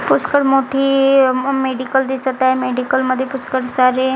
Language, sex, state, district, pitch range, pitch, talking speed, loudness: Marathi, female, Maharashtra, Gondia, 260-270 Hz, 260 Hz, 130 wpm, -16 LUFS